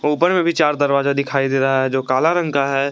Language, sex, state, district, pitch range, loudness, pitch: Hindi, male, Jharkhand, Garhwa, 135-155 Hz, -17 LUFS, 140 Hz